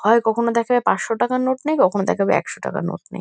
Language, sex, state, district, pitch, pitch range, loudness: Bengali, female, West Bengal, North 24 Parganas, 235 Hz, 225-255 Hz, -20 LUFS